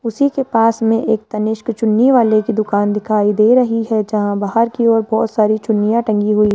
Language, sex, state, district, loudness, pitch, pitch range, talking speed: Hindi, male, Rajasthan, Jaipur, -15 LUFS, 220 Hz, 215-230 Hz, 220 wpm